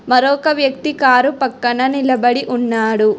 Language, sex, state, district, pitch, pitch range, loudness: Telugu, female, Telangana, Hyderabad, 255 Hz, 245-275 Hz, -15 LUFS